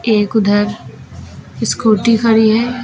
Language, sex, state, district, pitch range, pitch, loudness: Hindi, female, Uttar Pradesh, Lucknow, 215-230 Hz, 220 Hz, -13 LUFS